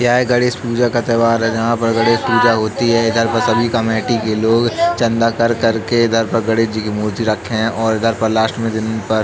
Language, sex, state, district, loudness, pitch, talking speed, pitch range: Hindi, male, Uttar Pradesh, Jalaun, -15 LUFS, 115 Hz, 240 wpm, 110-115 Hz